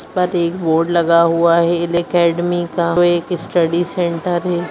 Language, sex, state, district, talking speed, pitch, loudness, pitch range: Hindi, male, Bihar, Muzaffarpur, 190 wpm, 170 Hz, -16 LUFS, 170-175 Hz